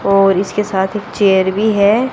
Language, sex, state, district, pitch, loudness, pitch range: Hindi, female, Haryana, Jhajjar, 200 Hz, -14 LUFS, 195-210 Hz